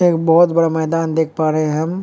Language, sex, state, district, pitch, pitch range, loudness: Hindi, male, Uttar Pradesh, Varanasi, 165 Hz, 160-165 Hz, -16 LUFS